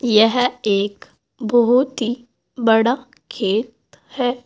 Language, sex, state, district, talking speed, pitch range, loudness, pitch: Hindi, female, Uttar Pradesh, Saharanpur, 95 wpm, 220-250 Hz, -18 LUFS, 240 Hz